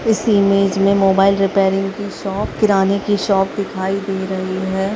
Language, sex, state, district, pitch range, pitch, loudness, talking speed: Hindi, female, Bihar, Bhagalpur, 195-200 Hz, 195 Hz, -17 LUFS, 170 wpm